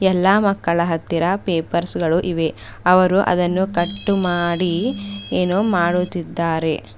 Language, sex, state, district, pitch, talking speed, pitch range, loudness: Kannada, female, Karnataka, Bidar, 180 Hz, 105 wpm, 170-190 Hz, -17 LUFS